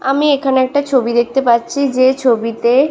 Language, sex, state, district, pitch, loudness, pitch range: Bengali, female, West Bengal, Malda, 260 Hz, -14 LUFS, 235-275 Hz